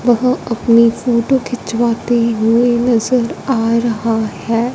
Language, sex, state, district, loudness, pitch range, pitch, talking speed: Hindi, female, Punjab, Fazilka, -15 LUFS, 230-245 Hz, 235 Hz, 115 wpm